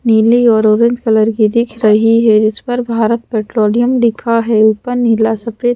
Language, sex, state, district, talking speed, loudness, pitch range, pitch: Hindi, female, Madhya Pradesh, Bhopal, 175 wpm, -12 LUFS, 220-235 Hz, 230 Hz